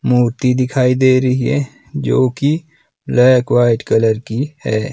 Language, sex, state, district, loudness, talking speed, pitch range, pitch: Hindi, male, Himachal Pradesh, Shimla, -15 LUFS, 145 wpm, 120-135 Hz, 130 Hz